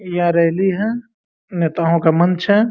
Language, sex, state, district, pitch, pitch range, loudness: Hindi, male, Uttar Pradesh, Gorakhpur, 180 Hz, 170-210 Hz, -16 LUFS